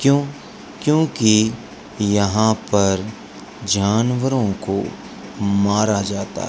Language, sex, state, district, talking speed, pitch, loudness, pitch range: Hindi, male, Rajasthan, Bikaner, 85 wpm, 105 Hz, -19 LUFS, 100-115 Hz